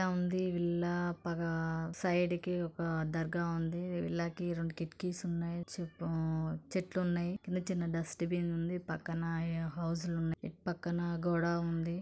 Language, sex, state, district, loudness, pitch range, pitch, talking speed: Telugu, female, Andhra Pradesh, Guntur, -36 LUFS, 165-175 Hz, 170 Hz, 155 wpm